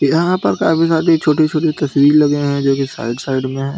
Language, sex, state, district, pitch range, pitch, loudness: Hindi, male, Uttar Pradesh, Lalitpur, 135-160 Hz, 145 Hz, -15 LUFS